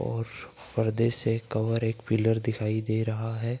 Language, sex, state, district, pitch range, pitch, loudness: Hindi, male, Uttar Pradesh, Budaun, 110-115 Hz, 115 Hz, -28 LUFS